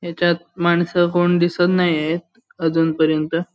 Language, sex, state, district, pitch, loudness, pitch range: Marathi, male, Maharashtra, Sindhudurg, 175 Hz, -18 LUFS, 165-175 Hz